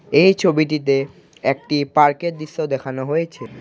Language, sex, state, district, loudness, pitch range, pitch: Bengali, male, Assam, Kamrup Metropolitan, -19 LUFS, 135-160 Hz, 150 Hz